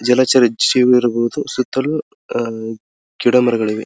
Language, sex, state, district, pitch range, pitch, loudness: Kannada, male, Karnataka, Dharwad, 115-130 Hz, 120 Hz, -16 LUFS